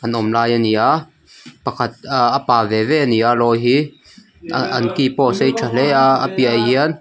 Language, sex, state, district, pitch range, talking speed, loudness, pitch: Mizo, male, Mizoram, Aizawl, 115-135 Hz, 255 wpm, -16 LUFS, 120 Hz